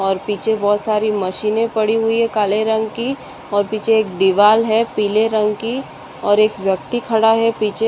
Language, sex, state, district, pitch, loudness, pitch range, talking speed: Hindi, female, Maharashtra, Aurangabad, 215 Hz, -17 LUFS, 205-225 Hz, 190 wpm